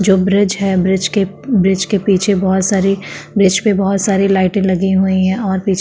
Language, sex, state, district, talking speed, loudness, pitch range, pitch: Hindi, female, Uttarakhand, Tehri Garhwal, 215 wpm, -14 LUFS, 190-200 Hz, 195 Hz